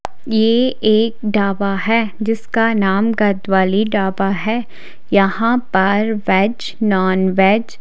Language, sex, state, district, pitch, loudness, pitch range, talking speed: Hindi, female, Chhattisgarh, Raipur, 210 Hz, -16 LUFS, 195-225 Hz, 105 wpm